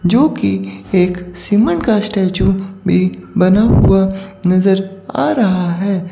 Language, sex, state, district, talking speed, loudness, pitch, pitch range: Hindi, female, Chandigarh, Chandigarh, 125 wpm, -14 LUFS, 190 Hz, 180-195 Hz